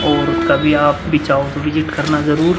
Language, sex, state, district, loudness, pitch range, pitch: Hindi, male, Uttar Pradesh, Muzaffarnagar, -15 LUFS, 145-155 Hz, 150 Hz